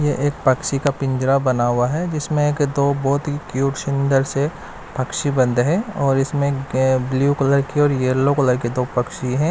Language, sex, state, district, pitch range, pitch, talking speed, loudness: Hindi, male, Bihar, West Champaran, 130-145 Hz, 140 Hz, 195 wpm, -19 LUFS